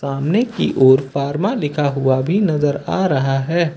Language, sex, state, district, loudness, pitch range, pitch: Hindi, male, Uttar Pradesh, Lucknow, -17 LUFS, 135-180 Hz, 145 Hz